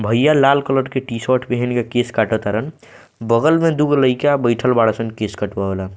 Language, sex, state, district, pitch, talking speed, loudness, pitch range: Bhojpuri, male, Bihar, Muzaffarpur, 120 Hz, 180 wpm, -17 LUFS, 110-135 Hz